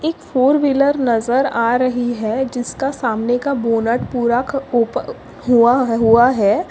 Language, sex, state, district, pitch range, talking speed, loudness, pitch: Hindi, female, Maharashtra, Pune, 235-270 Hz, 150 wpm, -16 LUFS, 245 Hz